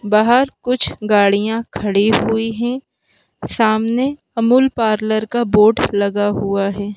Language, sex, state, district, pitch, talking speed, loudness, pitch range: Hindi, male, Madhya Pradesh, Bhopal, 220 Hz, 120 wpm, -16 LUFS, 205-240 Hz